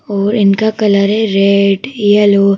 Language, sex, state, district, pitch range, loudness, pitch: Hindi, female, Madhya Pradesh, Bhopal, 200-215 Hz, -11 LUFS, 205 Hz